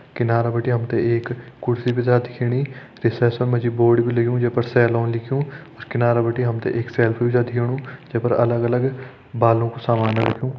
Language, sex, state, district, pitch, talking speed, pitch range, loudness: Hindi, male, Uttarakhand, Tehri Garhwal, 120 Hz, 200 wpm, 115-125 Hz, -20 LUFS